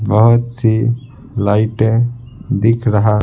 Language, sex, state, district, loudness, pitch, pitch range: Hindi, male, Bihar, Patna, -15 LUFS, 115 Hz, 110-120 Hz